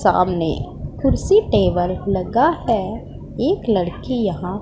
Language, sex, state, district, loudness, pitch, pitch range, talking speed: Hindi, female, Punjab, Pathankot, -19 LUFS, 190 Hz, 180-230 Hz, 105 wpm